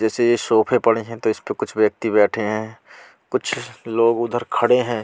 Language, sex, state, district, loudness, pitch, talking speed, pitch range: Hindi, male, Delhi, New Delhi, -20 LUFS, 115 Hz, 200 wpm, 110-120 Hz